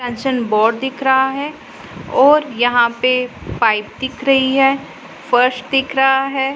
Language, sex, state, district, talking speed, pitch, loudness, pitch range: Hindi, female, Punjab, Pathankot, 145 wpm, 265 Hz, -15 LUFS, 245-270 Hz